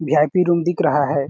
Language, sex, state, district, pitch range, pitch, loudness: Hindi, male, Chhattisgarh, Sarguja, 145-175 Hz, 155 Hz, -18 LUFS